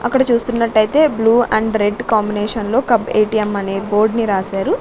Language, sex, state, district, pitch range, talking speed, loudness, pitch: Telugu, female, Andhra Pradesh, Sri Satya Sai, 210-240 Hz, 160 wpm, -16 LUFS, 220 Hz